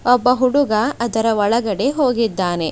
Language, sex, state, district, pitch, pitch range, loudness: Kannada, female, Karnataka, Bidar, 235 Hz, 215-255 Hz, -17 LUFS